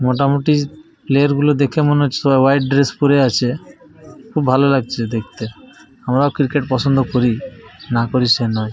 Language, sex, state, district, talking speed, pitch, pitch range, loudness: Bengali, male, Jharkhand, Jamtara, 160 wpm, 135 Hz, 125-145 Hz, -16 LUFS